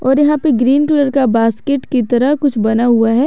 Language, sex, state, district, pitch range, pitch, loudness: Hindi, female, Jharkhand, Garhwa, 235-285 Hz, 265 Hz, -13 LUFS